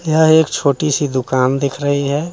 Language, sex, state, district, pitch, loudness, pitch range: Hindi, male, Bihar, Muzaffarpur, 145 Hz, -15 LUFS, 140-155 Hz